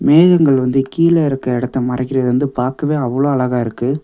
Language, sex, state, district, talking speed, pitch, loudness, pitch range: Tamil, male, Tamil Nadu, Nilgiris, 165 wpm, 130 Hz, -15 LUFS, 125-145 Hz